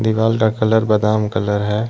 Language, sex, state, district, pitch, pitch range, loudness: Hindi, male, Jharkhand, Deoghar, 110 Hz, 105-110 Hz, -17 LUFS